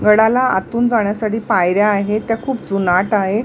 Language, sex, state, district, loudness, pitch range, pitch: Marathi, female, Maharashtra, Mumbai Suburban, -16 LUFS, 200-230 Hz, 215 Hz